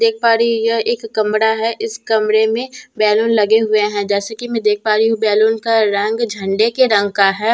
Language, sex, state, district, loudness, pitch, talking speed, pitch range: Hindi, female, Bihar, Katihar, -15 LUFS, 220 Hz, 245 wpm, 210-230 Hz